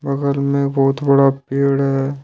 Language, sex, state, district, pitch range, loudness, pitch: Hindi, male, Jharkhand, Ranchi, 135-140 Hz, -17 LUFS, 140 Hz